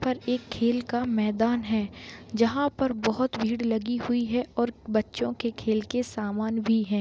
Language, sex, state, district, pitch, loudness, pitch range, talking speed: Hindi, male, Jharkhand, Jamtara, 230 Hz, -27 LUFS, 220-245 Hz, 190 wpm